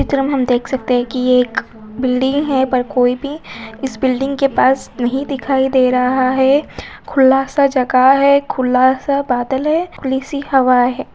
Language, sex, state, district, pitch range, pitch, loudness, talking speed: Hindi, female, Uttar Pradesh, Ghazipur, 250-275 Hz, 265 Hz, -15 LUFS, 195 wpm